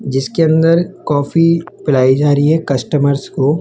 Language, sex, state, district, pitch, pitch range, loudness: Hindi, male, Rajasthan, Jaipur, 145 Hz, 135-165 Hz, -14 LUFS